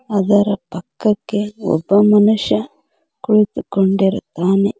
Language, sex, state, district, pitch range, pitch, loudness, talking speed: Kannada, female, Karnataka, Koppal, 195-210 Hz, 205 Hz, -16 LUFS, 60 wpm